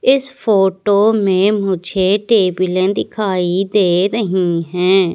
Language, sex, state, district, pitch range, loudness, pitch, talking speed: Hindi, female, Madhya Pradesh, Katni, 185-210 Hz, -15 LUFS, 190 Hz, 105 wpm